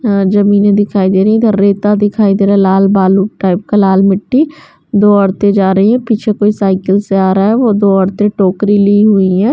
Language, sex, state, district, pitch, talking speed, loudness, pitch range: Hindi, female, Bihar, West Champaran, 200 Hz, 235 wpm, -10 LUFS, 195-210 Hz